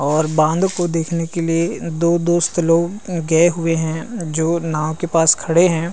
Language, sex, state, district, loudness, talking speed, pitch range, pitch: Chhattisgarhi, male, Chhattisgarh, Rajnandgaon, -17 LUFS, 170 wpm, 160-170 Hz, 165 Hz